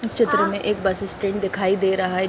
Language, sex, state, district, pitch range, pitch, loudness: Hindi, female, Uttar Pradesh, Muzaffarnagar, 190-210 Hz, 195 Hz, -21 LUFS